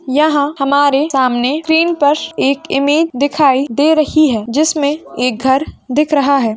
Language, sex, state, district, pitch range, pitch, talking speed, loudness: Hindi, female, Bihar, Madhepura, 270-305 Hz, 285 Hz, 155 wpm, -13 LUFS